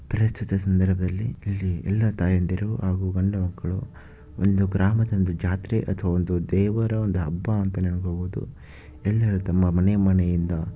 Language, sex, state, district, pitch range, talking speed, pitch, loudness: Kannada, male, Karnataka, Shimoga, 90-100 Hz, 115 wpm, 95 Hz, -24 LUFS